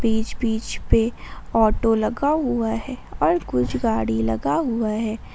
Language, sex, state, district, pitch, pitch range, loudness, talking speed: Hindi, female, Jharkhand, Ranchi, 225 Hz, 215-240 Hz, -22 LUFS, 145 wpm